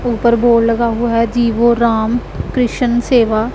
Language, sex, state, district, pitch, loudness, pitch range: Hindi, female, Punjab, Pathankot, 235 Hz, -14 LUFS, 230-240 Hz